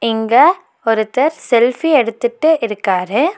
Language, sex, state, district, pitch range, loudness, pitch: Tamil, female, Tamil Nadu, Nilgiris, 225-305 Hz, -14 LUFS, 240 Hz